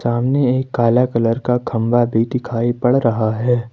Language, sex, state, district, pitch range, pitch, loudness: Hindi, male, Jharkhand, Ranchi, 115-125 Hz, 120 Hz, -17 LUFS